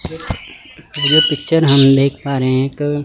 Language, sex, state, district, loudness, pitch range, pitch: Hindi, male, Chandigarh, Chandigarh, -14 LUFS, 135-150 Hz, 140 Hz